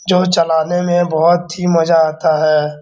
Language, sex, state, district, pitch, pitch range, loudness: Hindi, male, Bihar, Darbhanga, 165 Hz, 160-175 Hz, -14 LUFS